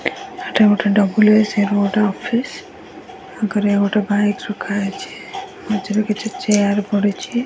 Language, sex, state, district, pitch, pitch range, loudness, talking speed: Odia, female, Odisha, Nuapada, 210 Hz, 205-225 Hz, -17 LUFS, 110 wpm